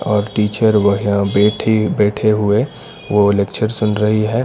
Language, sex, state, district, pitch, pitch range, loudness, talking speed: Hindi, male, Karnataka, Bangalore, 105 Hz, 100-110 Hz, -15 LUFS, 150 wpm